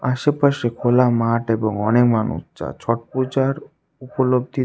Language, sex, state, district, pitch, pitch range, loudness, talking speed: Bengali, male, West Bengal, Alipurduar, 125 Hz, 115-130 Hz, -19 LUFS, 130 wpm